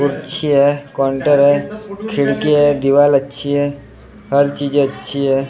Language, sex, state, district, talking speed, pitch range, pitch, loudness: Hindi, male, Maharashtra, Gondia, 140 wpm, 140-145 Hz, 140 Hz, -15 LUFS